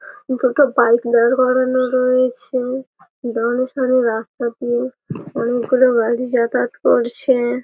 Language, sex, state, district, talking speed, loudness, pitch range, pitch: Bengali, female, West Bengal, Malda, 110 wpm, -17 LUFS, 240-255 Hz, 250 Hz